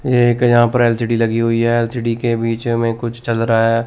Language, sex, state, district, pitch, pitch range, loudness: Hindi, male, Chandigarh, Chandigarh, 115 Hz, 115-120 Hz, -16 LUFS